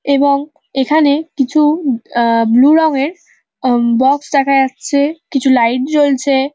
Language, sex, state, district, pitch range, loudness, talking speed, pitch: Bengali, female, West Bengal, North 24 Parganas, 260-295 Hz, -13 LUFS, 130 wpm, 275 Hz